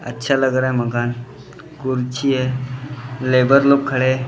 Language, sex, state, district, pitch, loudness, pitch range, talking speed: Hindi, male, Maharashtra, Gondia, 130 Hz, -18 LUFS, 125-135 Hz, 155 wpm